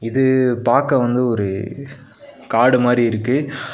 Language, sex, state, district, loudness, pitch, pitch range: Tamil, male, Tamil Nadu, Nilgiris, -17 LUFS, 125 Hz, 115-130 Hz